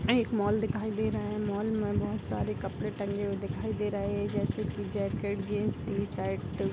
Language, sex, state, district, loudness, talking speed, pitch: Hindi, female, Bihar, Darbhanga, -32 LUFS, 215 wpm, 205 Hz